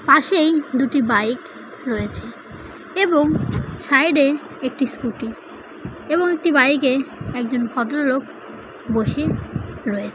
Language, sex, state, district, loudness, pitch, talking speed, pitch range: Bengali, male, West Bengal, Paschim Medinipur, -19 LUFS, 275 Hz, 100 wpm, 255-315 Hz